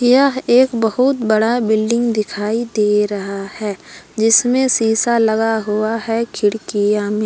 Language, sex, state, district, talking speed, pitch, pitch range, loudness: Hindi, female, Jharkhand, Palamu, 130 wpm, 225 Hz, 210-235 Hz, -16 LUFS